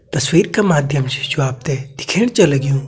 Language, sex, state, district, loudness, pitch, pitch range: Kumaoni, male, Uttarakhand, Tehri Garhwal, -16 LUFS, 140 Hz, 135-175 Hz